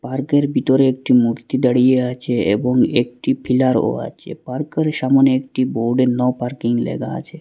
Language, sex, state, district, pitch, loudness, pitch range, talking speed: Bengali, male, Assam, Hailakandi, 130 Hz, -17 LUFS, 125-135 Hz, 145 wpm